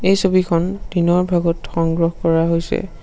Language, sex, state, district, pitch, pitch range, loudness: Assamese, male, Assam, Sonitpur, 170 Hz, 165-185 Hz, -18 LUFS